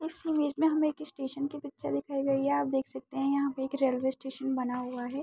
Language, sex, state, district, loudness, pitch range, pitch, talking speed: Hindi, female, Jharkhand, Sahebganj, -31 LUFS, 265-285 Hz, 275 Hz, 285 wpm